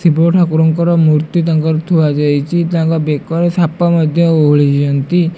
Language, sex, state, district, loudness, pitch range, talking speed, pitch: Odia, female, Odisha, Malkangiri, -12 LUFS, 150-170 Hz, 135 wpm, 165 Hz